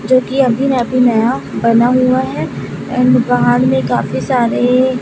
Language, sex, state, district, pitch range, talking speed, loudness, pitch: Hindi, female, Chhattisgarh, Raipur, 235-255 Hz, 155 wpm, -13 LUFS, 250 Hz